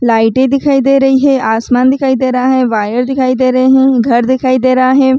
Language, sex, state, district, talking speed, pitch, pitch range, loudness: Chhattisgarhi, female, Chhattisgarh, Raigarh, 230 wpm, 260 Hz, 250-265 Hz, -10 LUFS